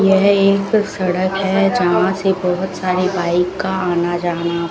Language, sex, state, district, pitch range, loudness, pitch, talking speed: Hindi, female, Rajasthan, Bikaner, 175-195 Hz, -17 LUFS, 185 Hz, 155 wpm